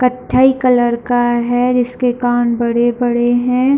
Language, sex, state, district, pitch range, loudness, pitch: Hindi, female, Chhattisgarh, Bilaspur, 240-250 Hz, -14 LUFS, 245 Hz